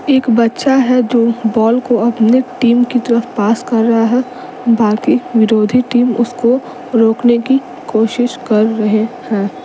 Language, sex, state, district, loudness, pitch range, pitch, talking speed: Hindi, female, Bihar, Patna, -13 LUFS, 225-250 Hz, 235 Hz, 150 wpm